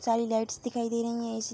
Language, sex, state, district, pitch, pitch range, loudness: Hindi, female, Bihar, Darbhanga, 230 Hz, 225-235 Hz, -30 LUFS